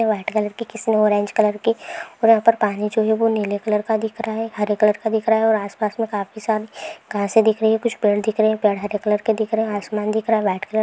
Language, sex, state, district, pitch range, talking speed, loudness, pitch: Hindi, female, Andhra Pradesh, Krishna, 210-220 Hz, 275 wpm, -20 LUFS, 215 Hz